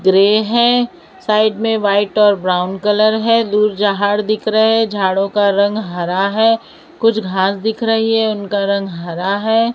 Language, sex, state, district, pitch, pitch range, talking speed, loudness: Hindi, female, Maharashtra, Mumbai Suburban, 210 Hz, 200-220 Hz, 170 wpm, -15 LUFS